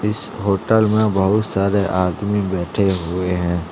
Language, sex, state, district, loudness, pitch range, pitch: Hindi, male, Jharkhand, Deoghar, -18 LUFS, 90-105 Hz, 95 Hz